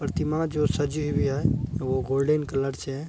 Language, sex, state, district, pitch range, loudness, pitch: Hindi, male, Bihar, Araria, 135-150 Hz, -26 LUFS, 145 Hz